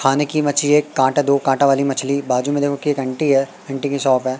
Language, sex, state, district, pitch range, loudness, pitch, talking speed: Hindi, male, Madhya Pradesh, Katni, 135-145 Hz, -18 LUFS, 140 Hz, 260 wpm